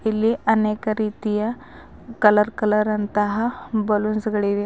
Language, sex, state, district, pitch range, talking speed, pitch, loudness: Kannada, female, Karnataka, Bidar, 210-220 Hz, 105 wpm, 215 Hz, -21 LUFS